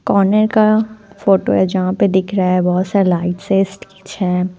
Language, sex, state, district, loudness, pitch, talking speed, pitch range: Hindi, female, Punjab, Fazilka, -15 LUFS, 195 Hz, 195 wpm, 185-200 Hz